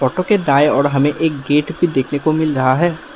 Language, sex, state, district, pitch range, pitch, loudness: Hindi, male, Assam, Sonitpur, 140-160 Hz, 150 Hz, -16 LUFS